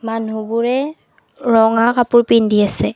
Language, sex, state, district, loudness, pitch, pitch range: Assamese, female, Assam, Kamrup Metropolitan, -15 LUFS, 225 Hz, 220-240 Hz